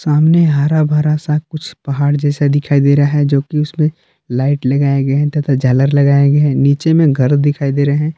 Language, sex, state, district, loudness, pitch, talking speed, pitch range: Hindi, male, Jharkhand, Palamu, -13 LUFS, 145 Hz, 215 wpm, 140-150 Hz